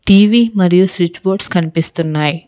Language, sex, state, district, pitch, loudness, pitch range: Telugu, female, Telangana, Hyderabad, 180 Hz, -13 LUFS, 165-195 Hz